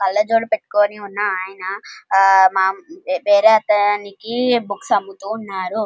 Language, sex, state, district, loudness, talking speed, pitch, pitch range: Telugu, female, Andhra Pradesh, Krishna, -17 LUFS, 90 wpm, 205 Hz, 195-235 Hz